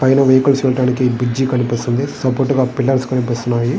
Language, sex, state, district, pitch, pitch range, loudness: Telugu, male, Andhra Pradesh, Guntur, 130 Hz, 125-135 Hz, -16 LUFS